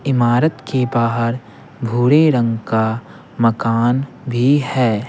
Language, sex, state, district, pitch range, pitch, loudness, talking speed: Hindi, male, Bihar, Patna, 115-130 Hz, 120 Hz, -17 LUFS, 105 wpm